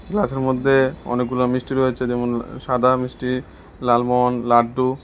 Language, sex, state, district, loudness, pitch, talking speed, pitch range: Bengali, male, Tripura, West Tripura, -20 LUFS, 125 Hz, 120 wpm, 120-130 Hz